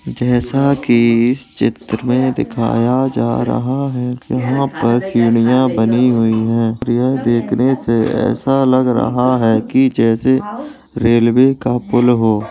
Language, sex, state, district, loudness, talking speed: Hindi, male, Uttar Pradesh, Jalaun, -15 LUFS, 145 wpm